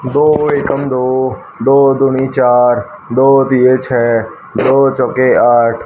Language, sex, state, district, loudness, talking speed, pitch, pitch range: Hindi, male, Haryana, Rohtak, -12 LUFS, 125 wpm, 130 Hz, 120-135 Hz